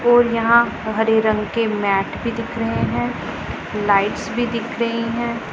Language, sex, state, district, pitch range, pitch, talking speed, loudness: Hindi, female, Punjab, Pathankot, 215-235 Hz, 230 Hz, 150 wpm, -19 LUFS